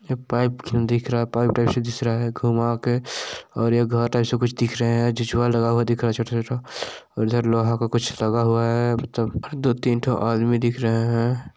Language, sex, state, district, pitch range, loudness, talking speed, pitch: Hindi, male, Chhattisgarh, Balrampur, 115-120 Hz, -22 LUFS, 200 wpm, 120 Hz